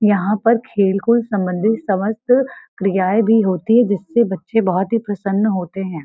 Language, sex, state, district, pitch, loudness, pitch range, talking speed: Hindi, female, Uttar Pradesh, Varanasi, 205 Hz, -17 LUFS, 190-225 Hz, 170 wpm